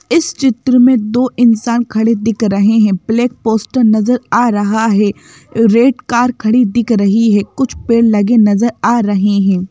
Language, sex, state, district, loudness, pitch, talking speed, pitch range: Hindi, female, Madhya Pradesh, Bhopal, -12 LUFS, 225 Hz, 175 wpm, 210-240 Hz